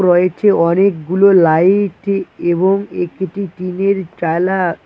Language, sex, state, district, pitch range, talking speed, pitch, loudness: Bengali, male, West Bengal, Cooch Behar, 175-195 Hz, 75 wpm, 185 Hz, -14 LUFS